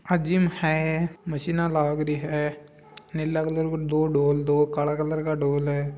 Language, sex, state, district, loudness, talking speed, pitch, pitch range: Marwari, male, Rajasthan, Nagaur, -25 LUFS, 170 wpm, 155 Hz, 150-160 Hz